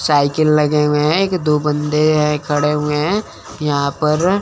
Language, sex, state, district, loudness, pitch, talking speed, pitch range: Hindi, male, Chandigarh, Chandigarh, -16 LUFS, 150 Hz, 175 wpm, 150-155 Hz